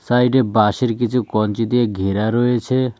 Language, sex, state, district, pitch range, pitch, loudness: Bengali, male, West Bengal, Cooch Behar, 110-125 Hz, 120 Hz, -18 LUFS